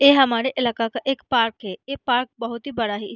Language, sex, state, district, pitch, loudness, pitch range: Hindi, female, Bihar, Araria, 235 Hz, -22 LUFS, 230-265 Hz